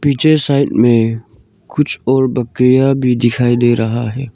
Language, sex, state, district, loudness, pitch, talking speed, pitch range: Hindi, male, Arunachal Pradesh, Lower Dibang Valley, -13 LUFS, 125 Hz, 150 wpm, 115-135 Hz